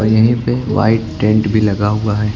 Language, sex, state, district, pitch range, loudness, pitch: Hindi, male, Uttar Pradesh, Lucknow, 105-110 Hz, -14 LUFS, 110 Hz